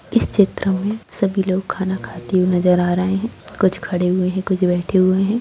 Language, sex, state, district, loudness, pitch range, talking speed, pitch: Hindi, female, Bihar, Lakhisarai, -19 LUFS, 180-195 Hz, 220 wpm, 190 Hz